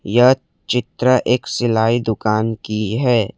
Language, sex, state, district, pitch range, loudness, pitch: Hindi, male, Assam, Kamrup Metropolitan, 110-125 Hz, -17 LUFS, 120 Hz